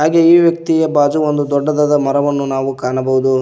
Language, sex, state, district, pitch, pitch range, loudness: Kannada, male, Karnataka, Koppal, 145 Hz, 135-155 Hz, -14 LUFS